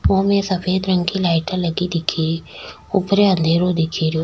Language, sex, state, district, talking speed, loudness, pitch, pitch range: Rajasthani, female, Rajasthan, Nagaur, 170 wpm, -18 LUFS, 180 Hz, 165-190 Hz